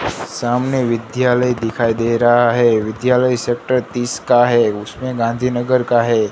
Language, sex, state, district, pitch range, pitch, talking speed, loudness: Hindi, male, Gujarat, Gandhinagar, 115-125 Hz, 120 Hz, 140 wpm, -16 LUFS